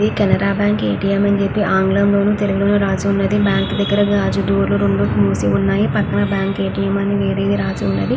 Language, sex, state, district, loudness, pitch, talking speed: Telugu, female, Andhra Pradesh, Krishna, -16 LUFS, 195 Hz, 160 wpm